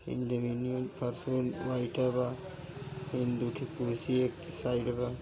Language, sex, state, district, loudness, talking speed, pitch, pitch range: Hindi, male, Uttar Pradesh, Gorakhpur, -34 LUFS, 125 wpm, 125 Hz, 120-130 Hz